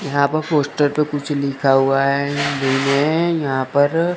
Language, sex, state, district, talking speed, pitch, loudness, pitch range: Hindi, male, Chandigarh, Chandigarh, 170 wpm, 145 Hz, -18 LUFS, 140-150 Hz